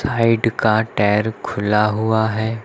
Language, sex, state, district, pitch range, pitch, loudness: Hindi, male, Uttar Pradesh, Lucknow, 105-115 Hz, 110 Hz, -18 LUFS